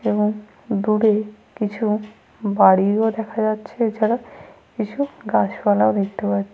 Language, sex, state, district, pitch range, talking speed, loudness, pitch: Bengali, female, Jharkhand, Sahebganj, 205-220 Hz, 110 wpm, -20 LUFS, 215 Hz